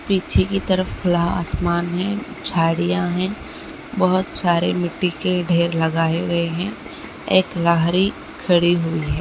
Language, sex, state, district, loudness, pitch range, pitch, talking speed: Hindi, female, Chhattisgarh, Kabirdham, -19 LUFS, 170-190 Hz, 175 Hz, 135 wpm